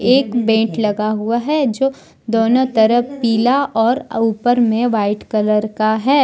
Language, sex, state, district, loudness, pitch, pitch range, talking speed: Hindi, male, Jharkhand, Deoghar, -16 LUFS, 230 Hz, 220-250 Hz, 155 wpm